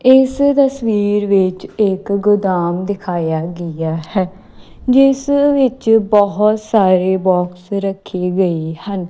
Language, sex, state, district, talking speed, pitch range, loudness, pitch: Punjabi, female, Punjab, Kapurthala, 105 wpm, 180-220 Hz, -15 LUFS, 200 Hz